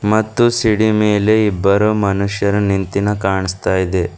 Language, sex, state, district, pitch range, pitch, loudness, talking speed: Kannada, female, Karnataka, Bidar, 95-105 Hz, 100 Hz, -15 LUFS, 115 wpm